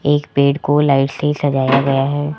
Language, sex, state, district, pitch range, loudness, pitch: Hindi, male, Rajasthan, Jaipur, 135-145 Hz, -15 LUFS, 140 Hz